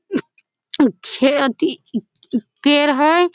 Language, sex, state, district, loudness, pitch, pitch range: Maithili, female, Bihar, Samastipur, -17 LUFS, 290 Hz, 255-310 Hz